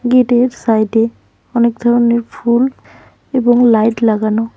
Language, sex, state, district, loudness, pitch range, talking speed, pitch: Bengali, female, West Bengal, Cooch Behar, -13 LUFS, 225-245 Hz, 105 wpm, 235 Hz